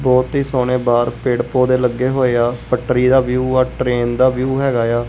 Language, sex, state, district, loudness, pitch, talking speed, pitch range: Punjabi, male, Punjab, Kapurthala, -16 LUFS, 125 Hz, 215 wpm, 120-130 Hz